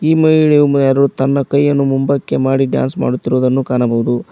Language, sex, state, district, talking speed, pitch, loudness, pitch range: Kannada, male, Karnataka, Koppal, 140 wpm, 135 Hz, -14 LUFS, 130-140 Hz